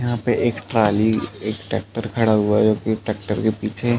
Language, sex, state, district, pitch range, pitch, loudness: Hindi, male, Uttar Pradesh, Jalaun, 105-115 Hz, 110 Hz, -21 LUFS